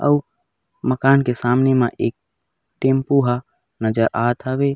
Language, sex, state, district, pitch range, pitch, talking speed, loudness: Chhattisgarhi, male, Chhattisgarh, Raigarh, 115-135 Hz, 125 Hz, 140 wpm, -19 LUFS